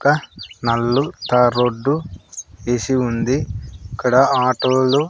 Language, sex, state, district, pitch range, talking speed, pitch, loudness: Telugu, male, Andhra Pradesh, Sri Satya Sai, 115-130 Hz, 105 wpm, 125 Hz, -18 LUFS